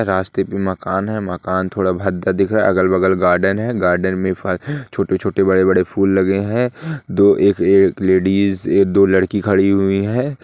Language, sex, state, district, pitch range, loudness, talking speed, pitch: Hindi, male, Rajasthan, Nagaur, 95-100 Hz, -16 LUFS, 195 wpm, 95 Hz